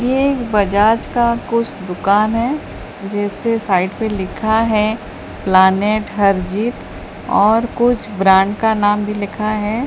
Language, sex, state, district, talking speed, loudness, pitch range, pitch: Hindi, female, Odisha, Sambalpur, 135 wpm, -16 LUFS, 200-230 Hz, 215 Hz